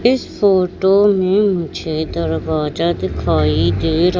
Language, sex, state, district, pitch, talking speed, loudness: Hindi, female, Madhya Pradesh, Katni, 170 Hz, 115 wpm, -16 LUFS